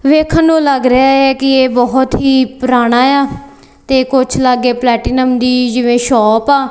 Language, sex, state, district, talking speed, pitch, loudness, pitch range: Punjabi, female, Punjab, Kapurthala, 170 wpm, 255 Hz, -11 LUFS, 245-270 Hz